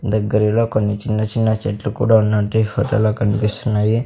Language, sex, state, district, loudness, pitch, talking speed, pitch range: Telugu, male, Andhra Pradesh, Sri Satya Sai, -18 LUFS, 110 Hz, 160 wpm, 105-110 Hz